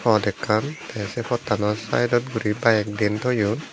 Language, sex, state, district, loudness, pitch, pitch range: Chakma, male, Tripura, Dhalai, -23 LUFS, 110 Hz, 105-120 Hz